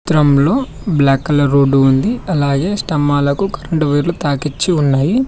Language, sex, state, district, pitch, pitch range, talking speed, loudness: Telugu, male, Telangana, Mahabubabad, 145 Hz, 140-170 Hz, 125 wpm, -14 LUFS